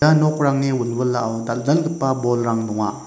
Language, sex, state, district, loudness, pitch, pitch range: Garo, male, Meghalaya, West Garo Hills, -20 LUFS, 125 Hz, 115-145 Hz